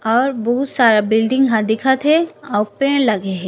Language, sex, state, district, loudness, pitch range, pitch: Chhattisgarhi, female, Chhattisgarh, Raigarh, -16 LUFS, 220-270 Hz, 235 Hz